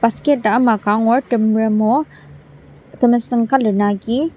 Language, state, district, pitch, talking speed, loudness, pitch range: Ao, Nagaland, Dimapur, 230 Hz, 135 wpm, -16 LUFS, 220-250 Hz